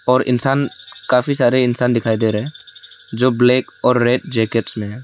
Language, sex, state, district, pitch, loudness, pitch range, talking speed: Hindi, male, Arunachal Pradesh, Lower Dibang Valley, 125 Hz, -17 LUFS, 115-130 Hz, 180 wpm